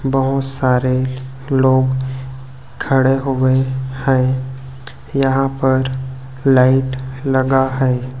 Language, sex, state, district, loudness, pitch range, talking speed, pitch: Hindi, male, Chhattisgarh, Raipur, -16 LUFS, 130-135 Hz, 80 wpm, 130 Hz